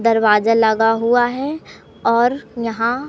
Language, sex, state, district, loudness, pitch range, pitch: Hindi, male, Madhya Pradesh, Katni, -17 LUFS, 225-245 Hz, 230 Hz